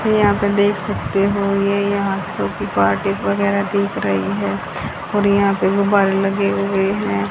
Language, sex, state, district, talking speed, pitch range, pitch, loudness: Hindi, female, Haryana, Jhajjar, 170 wpm, 195-200 Hz, 200 Hz, -18 LUFS